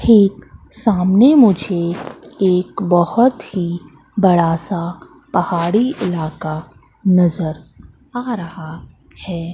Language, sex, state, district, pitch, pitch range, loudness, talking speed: Hindi, female, Madhya Pradesh, Katni, 180 Hz, 165-205 Hz, -16 LUFS, 90 wpm